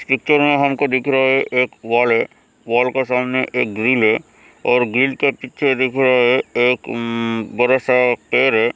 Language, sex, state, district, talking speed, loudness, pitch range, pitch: Hindi, male, Bihar, Kishanganj, 185 wpm, -17 LUFS, 120-135 Hz, 125 Hz